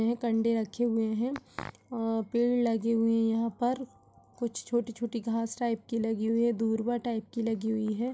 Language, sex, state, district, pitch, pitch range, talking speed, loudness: Hindi, female, Uttar Pradesh, Budaun, 230 Hz, 225-240 Hz, 190 wpm, -30 LUFS